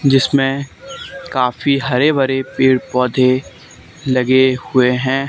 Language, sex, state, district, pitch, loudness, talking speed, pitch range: Hindi, male, Haryana, Charkhi Dadri, 130 Hz, -15 LUFS, 100 wpm, 130-140 Hz